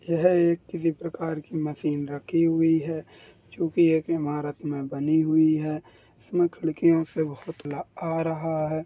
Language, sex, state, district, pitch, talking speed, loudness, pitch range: Hindi, female, Bihar, Sitamarhi, 160 Hz, 170 wpm, -25 LUFS, 150-165 Hz